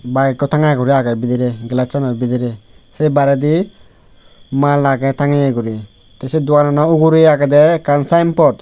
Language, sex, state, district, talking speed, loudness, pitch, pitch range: Chakma, male, Tripura, West Tripura, 155 wpm, -14 LUFS, 140 Hz, 125-150 Hz